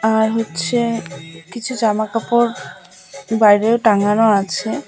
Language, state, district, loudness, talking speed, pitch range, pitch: Bengali, West Bengal, Alipurduar, -16 LUFS, 85 wpm, 200-230 Hz, 220 Hz